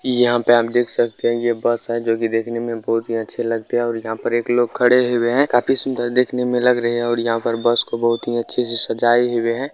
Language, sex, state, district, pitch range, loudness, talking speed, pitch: Hindi, male, Bihar, Muzaffarpur, 115-120 Hz, -18 LUFS, 290 wpm, 120 Hz